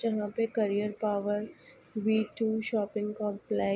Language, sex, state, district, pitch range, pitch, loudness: Hindi, female, Uttar Pradesh, Ghazipur, 205-220 Hz, 210 Hz, -31 LUFS